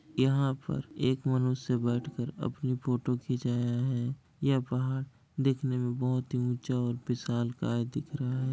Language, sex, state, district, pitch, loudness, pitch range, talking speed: Hindi, male, Bihar, Kishanganj, 130 Hz, -32 LUFS, 125-135 Hz, 140 wpm